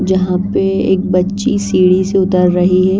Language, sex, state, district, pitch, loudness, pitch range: Hindi, female, Bihar, Patna, 190 Hz, -13 LUFS, 185-195 Hz